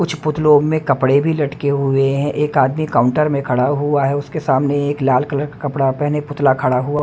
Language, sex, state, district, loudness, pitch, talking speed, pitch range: Hindi, male, Haryana, Rohtak, -16 LUFS, 145 Hz, 215 wpm, 135-150 Hz